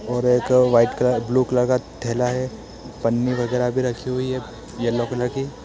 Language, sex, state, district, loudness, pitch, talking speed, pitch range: Hindi, male, Bihar, East Champaran, -21 LUFS, 125 Hz, 170 wpm, 120-125 Hz